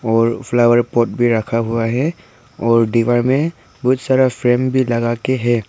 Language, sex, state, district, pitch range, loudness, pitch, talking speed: Hindi, male, Arunachal Pradesh, Papum Pare, 115-130 Hz, -16 LUFS, 120 Hz, 180 wpm